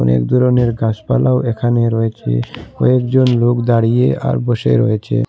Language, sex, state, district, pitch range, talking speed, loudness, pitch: Bengali, male, Assam, Hailakandi, 110-125 Hz, 125 wpm, -15 LUFS, 120 Hz